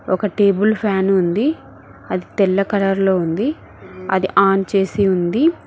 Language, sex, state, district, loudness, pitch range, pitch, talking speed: Telugu, female, Telangana, Mahabubabad, -17 LUFS, 190-210 Hz, 195 Hz, 125 wpm